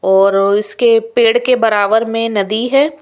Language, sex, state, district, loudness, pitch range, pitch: Hindi, female, Bihar, West Champaran, -13 LUFS, 205-240 Hz, 225 Hz